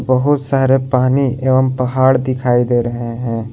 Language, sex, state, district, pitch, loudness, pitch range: Hindi, male, Jharkhand, Garhwa, 130 Hz, -15 LUFS, 120-130 Hz